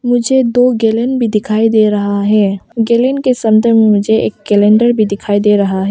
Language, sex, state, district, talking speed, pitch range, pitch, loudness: Hindi, female, Arunachal Pradesh, Papum Pare, 205 wpm, 205-240 Hz, 220 Hz, -11 LUFS